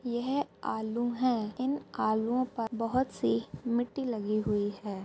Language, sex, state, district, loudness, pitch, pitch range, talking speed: Hindi, female, Uttar Pradesh, Etah, -32 LUFS, 235 Hz, 215-250 Hz, 140 wpm